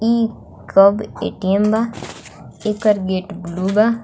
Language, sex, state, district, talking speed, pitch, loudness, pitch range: Bhojpuri, female, Jharkhand, Palamu, 120 wpm, 210 Hz, -18 LUFS, 195-220 Hz